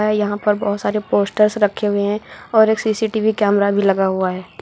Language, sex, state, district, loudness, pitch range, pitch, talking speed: Hindi, female, Uttar Pradesh, Lucknow, -17 LUFS, 200-215 Hz, 210 Hz, 220 wpm